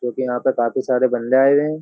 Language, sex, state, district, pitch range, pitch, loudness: Hindi, male, Uttar Pradesh, Jyotiba Phule Nagar, 125-130 Hz, 130 Hz, -18 LUFS